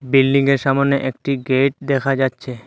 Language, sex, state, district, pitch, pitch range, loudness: Bengali, male, Assam, Hailakandi, 135 Hz, 130-140 Hz, -17 LUFS